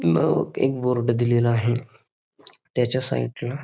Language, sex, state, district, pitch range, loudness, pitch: Marathi, male, Maharashtra, Pune, 115-125 Hz, -23 LUFS, 120 Hz